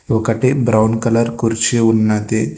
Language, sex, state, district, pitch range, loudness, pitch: Telugu, male, Telangana, Hyderabad, 110-115 Hz, -15 LUFS, 115 Hz